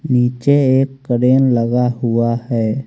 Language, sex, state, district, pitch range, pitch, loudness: Hindi, male, Haryana, Rohtak, 120-135 Hz, 125 Hz, -15 LUFS